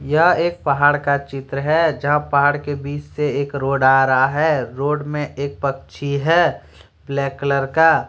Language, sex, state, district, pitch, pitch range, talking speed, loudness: Hindi, male, Jharkhand, Deoghar, 140 Hz, 140-150 Hz, 180 wpm, -18 LUFS